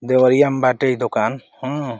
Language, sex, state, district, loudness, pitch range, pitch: Bhojpuri, male, Uttar Pradesh, Deoria, -18 LUFS, 130-135 Hz, 130 Hz